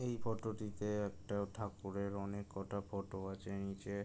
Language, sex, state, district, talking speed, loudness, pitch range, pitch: Bengali, male, West Bengal, Jalpaiguri, 150 wpm, -43 LUFS, 100-105 Hz, 100 Hz